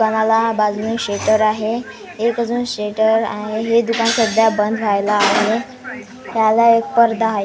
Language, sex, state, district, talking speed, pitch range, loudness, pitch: Marathi, female, Maharashtra, Washim, 135 wpm, 215-230 Hz, -16 LUFS, 220 Hz